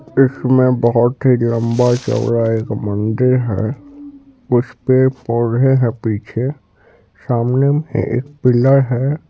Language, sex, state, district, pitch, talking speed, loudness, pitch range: Hindi, male, Bihar, Supaul, 125 Hz, 95 wpm, -16 LUFS, 115-135 Hz